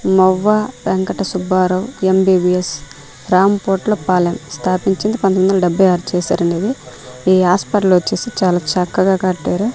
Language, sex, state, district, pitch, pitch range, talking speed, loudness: Telugu, female, Andhra Pradesh, Manyam, 185 Hz, 180-195 Hz, 125 wpm, -15 LUFS